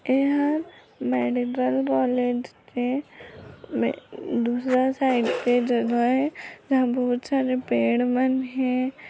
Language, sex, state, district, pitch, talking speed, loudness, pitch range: Hindi, female, Chhattisgarh, Raigarh, 250 Hz, 100 wpm, -24 LUFS, 240-260 Hz